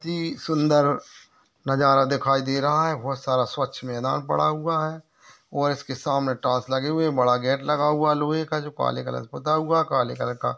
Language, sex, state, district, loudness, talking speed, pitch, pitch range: Hindi, male, Uttar Pradesh, Jyotiba Phule Nagar, -23 LUFS, 205 wpm, 140 Hz, 130-155 Hz